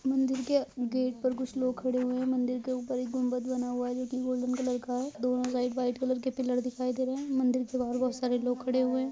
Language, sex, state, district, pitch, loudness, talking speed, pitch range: Hindi, female, Goa, North and South Goa, 255 Hz, -31 LUFS, 270 wpm, 250-255 Hz